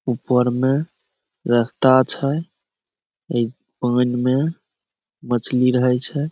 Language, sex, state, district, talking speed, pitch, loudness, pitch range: Maithili, male, Bihar, Samastipur, 95 wpm, 125 Hz, -20 LUFS, 125-135 Hz